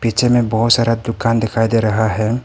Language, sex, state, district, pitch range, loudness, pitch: Hindi, male, Arunachal Pradesh, Papum Pare, 110-115 Hz, -15 LUFS, 115 Hz